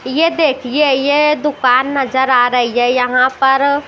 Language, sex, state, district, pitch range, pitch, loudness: Hindi, female, Maharashtra, Washim, 250-290 Hz, 270 Hz, -13 LUFS